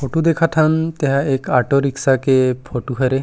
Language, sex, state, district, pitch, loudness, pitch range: Chhattisgarhi, male, Chhattisgarh, Rajnandgaon, 135 Hz, -17 LUFS, 130-155 Hz